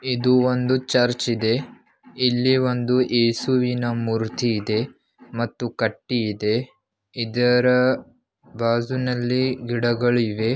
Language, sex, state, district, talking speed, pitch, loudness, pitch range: Kannada, male, Karnataka, Belgaum, 85 wpm, 120 Hz, -21 LUFS, 115-125 Hz